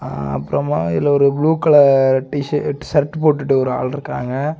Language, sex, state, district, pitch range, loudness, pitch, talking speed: Tamil, male, Tamil Nadu, Kanyakumari, 130-150 Hz, -16 LUFS, 140 Hz, 170 wpm